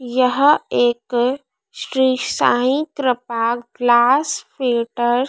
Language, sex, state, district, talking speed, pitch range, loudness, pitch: Hindi, female, Madhya Pradesh, Dhar, 90 wpm, 240-265 Hz, -18 LUFS, 250 Hz